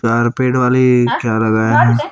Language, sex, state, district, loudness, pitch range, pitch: Hindi, male, Chhattisgarh, Raipur, -13 LUFS, 115-125 Hz, 120 Hz